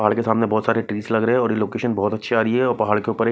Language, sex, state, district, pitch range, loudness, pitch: Hindi, male, Maharashtra, Mumbai Suburban, 110-115 Hz, -20 LUFS, 115 Hz